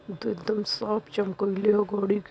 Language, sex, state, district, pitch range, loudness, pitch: Hindi, female, Uttar Pradesh, Varanasi, 200-215 Hz, -27 LUFS, 205 Hz